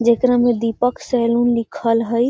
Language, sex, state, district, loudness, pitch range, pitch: Magahi, female, Bihar, Gaya, -17 LUFS, 230-245 Hz, 235 Hz